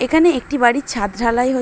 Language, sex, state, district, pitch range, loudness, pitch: Bengali, female, West Bengal, Dakshin Dinajpur, 240-285 Hz, -17 LUFS, 255 Hz